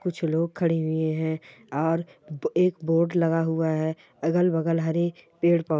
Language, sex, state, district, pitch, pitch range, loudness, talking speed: Hindi, male, Chhattisgarh, Sukma, 165 Hz, 160-170 Hz, -25 LUFS, 165 wpm